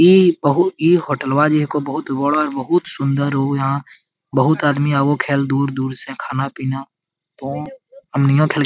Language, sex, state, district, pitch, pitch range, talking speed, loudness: Hindi, male, Bihar, Jamui, 145 Hz, 140-160 Hz, 165 wpm, -18 LUFS